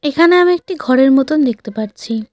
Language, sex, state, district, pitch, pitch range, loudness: Bengali, female, West Bengal, Cooch Behar, 270 Hz, 225-340 Hz, -13 LUFS